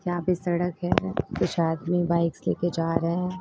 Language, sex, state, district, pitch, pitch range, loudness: Hindi, female, Uttar Pradesh, Lalitpur, 175 Hz, 170-175 Hz, -26 LUFS